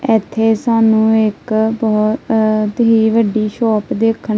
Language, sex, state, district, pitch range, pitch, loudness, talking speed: Punjabi, female, Punjab, Kapurthala, 215-225 Hz, 220 Hz, -14 LUFS, 110 wpm